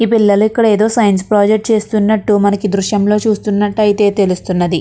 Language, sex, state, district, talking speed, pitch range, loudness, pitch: Telugu, female, Andhra Pradesh, Krishna, 125 wpm, 200-215 Hz, -13 LUFS, 210 Hz